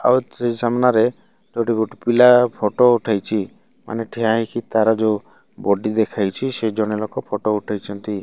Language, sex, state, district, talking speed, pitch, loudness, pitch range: Odia, male, Odisha, Malkangiri, 140 wpm, 110 Hz, -19 LUFS, 105-120 Hz